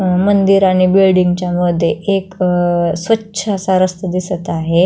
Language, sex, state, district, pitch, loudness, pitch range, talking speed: Marathi, female, Maharashtra, Pune, 185 Hz, -14 LUFS, 175-195 Hz, 150 wpm